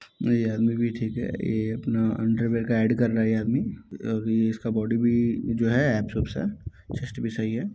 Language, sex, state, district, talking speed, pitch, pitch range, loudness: Hindi, male, Bihar, Muzaffarpur, 210 wpm, 115 Hz, 110-115 Hz, -25 LUFS